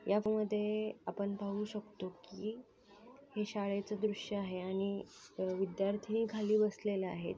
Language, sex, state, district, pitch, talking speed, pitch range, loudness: Marathi, female, Maharashtra, Sindhudurg, 205 Hz, 115 wpm, 200-215 Hz, -38 LUFS